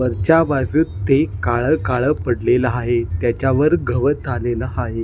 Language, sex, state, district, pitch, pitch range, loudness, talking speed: Marathi, male, Maharashtra, Nagpur, 120 Hz, 115-135 Hz, -18 LUFS, 130 wpm